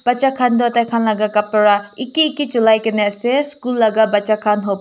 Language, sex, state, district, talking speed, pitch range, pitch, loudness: Nagamese, female, Nagaland, Kohima, 210 wpm, 210-250 Hz, 225 Hz, -16 LUFS